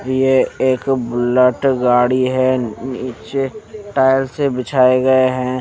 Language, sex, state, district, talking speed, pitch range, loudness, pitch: Hindi, male, Punjab, Fazilka, 130 wpm, 125-135 Hz, -16 LUFS, 130 Hz